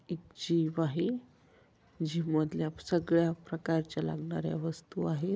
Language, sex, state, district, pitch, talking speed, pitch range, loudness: Marathi, female, Maharashtra, Dhule, 165 Hz, 110 wpm, 155-170 Hz, -33 LUFS